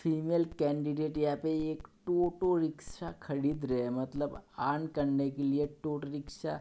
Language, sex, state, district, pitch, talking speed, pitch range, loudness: Hindi, male, Uttar Pradesh, Hamirpur, 150 Hz, 165 wpm, 140-160 Hz, -33 LUFS